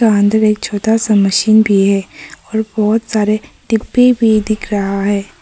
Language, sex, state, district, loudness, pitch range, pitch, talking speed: Hindi, female, Arunachal Pradesh, Papum Pare, -13 LUFS, 205-220 Hz, 215 Hz, 165 wpm